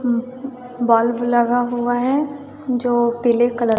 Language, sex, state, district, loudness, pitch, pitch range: Hindi, female, Bihar, West Champaran, -18 LUFS, 245 Hz, 240-255 Hz